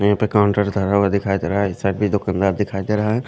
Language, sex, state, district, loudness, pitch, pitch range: Hindi, male, Himachal Pradesh, Shimla, -19 LUFS, 100 Hz, 100-105 Hz